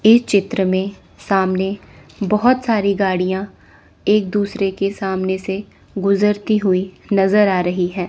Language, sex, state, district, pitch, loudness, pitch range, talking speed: Hindi, female, Chandigarh, Chandigarh, 195 Hz, -18 LUFS, 190-210 Hz, 135 wpm